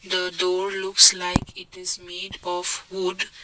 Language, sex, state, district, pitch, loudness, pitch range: English, male, Assam, Kamrup Metropolitan, 185 Hz, -21 LUFS, 180-190 Hz